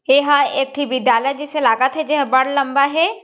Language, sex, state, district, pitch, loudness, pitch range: Chhattisgarhi, female, Chhattisgarh, Jashpur, 280 Hz, -16 LUFS, 260-290 Hz